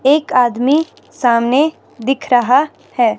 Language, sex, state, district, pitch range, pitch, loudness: Hindi, female, Himachal Pradesh, Shimla, 245-295 Hz, 265 Hz, -15 LUFS